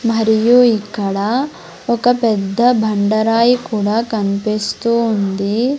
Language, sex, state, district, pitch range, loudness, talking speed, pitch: Telugu, male, Andhra Pradesh, Sri Satya Sai, 210-235 Hz, -15 LUFS, 85 wpm, 225 Hz